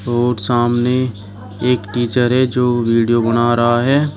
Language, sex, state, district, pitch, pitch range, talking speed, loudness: Hindi, male, Uttar Pradesh, Shamli, 120 Hz, 120-125 Hz, 145 wpm, -15 LUFS